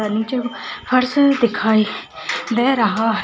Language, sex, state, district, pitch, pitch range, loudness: Hindi, female, Chhattisgarh, Jashpur, 235 Hz, 220-255 Hz, -18 LUFS